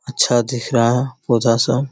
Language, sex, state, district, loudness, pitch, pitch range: Hindi, male, Bihar, Jamui, -17 LUFS, 120 Hz, 120-130 Hz